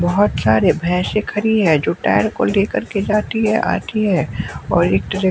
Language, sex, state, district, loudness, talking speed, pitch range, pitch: Hindi, male, Bihar, West Champaran, -17 LUFS, 190 wpm, 175-215 Hz, 200 Hz